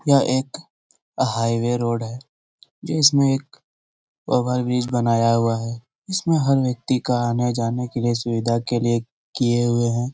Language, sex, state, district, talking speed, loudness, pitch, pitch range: Hindi, male, Bihar, Lakhisarai, 135 wpm, -21 LUFS, 120 Hz, 115-130 Hz